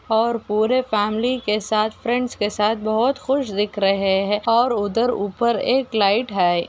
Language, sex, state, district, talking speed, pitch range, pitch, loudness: Hindi, female, Uttar Pradesh, Ghazipur, 170 wpm, 205-240 Hz, 220 Hz, -20 LUFS